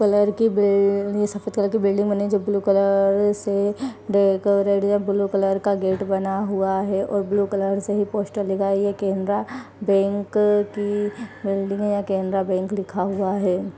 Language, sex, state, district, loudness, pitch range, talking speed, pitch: Hindi, female, Uttar Pradesh, Varanasi, -21 LUFS, 195-205 Hz, 190 wpm, 200 Hz